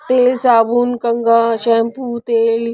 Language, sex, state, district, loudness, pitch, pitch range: Hindi, female, Punjab, Pathankot, -14 LUFS, 235 Hz, 230-245 Hz